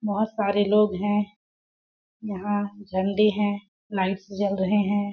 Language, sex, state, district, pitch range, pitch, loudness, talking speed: Hindi, female, Chhattisgarh, Balrampur, 200-210 Hz, 205 Hz, -25 LUFS, 130 wpm